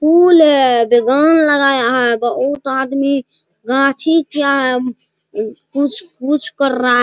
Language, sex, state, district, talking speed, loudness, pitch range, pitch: Hindi, male, Bihar, Araria, 120 wpm, -14 LUFS, 250-290 Hz, 275 Hz